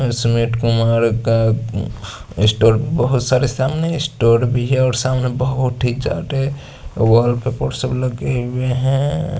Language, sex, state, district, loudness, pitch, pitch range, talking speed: Hindi, male, Chandigarh, Chandigarh, -17 LUFS, 125 Hz, 115-130 Hz, 145 wpm